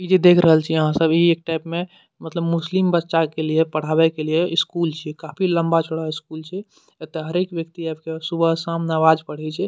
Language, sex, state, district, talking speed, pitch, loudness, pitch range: Maithili, male, Bihar, Madhepura, 210 wpm, 165 Hz, -20 LUFS, 160-170 Hz